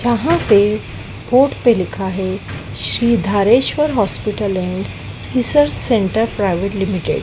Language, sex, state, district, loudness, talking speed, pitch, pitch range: Hindi, female, Madhya Pradesh, Dhar, -16 LUFS, 125 wpm, 210 Hz, 195-240 Hz